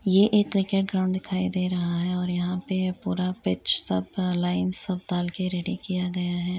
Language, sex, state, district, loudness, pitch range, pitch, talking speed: Hindi, female, Uttar Pradesh, Etah, -26 LUFS, 180-190 Hz, 185 Hz, 190 wpm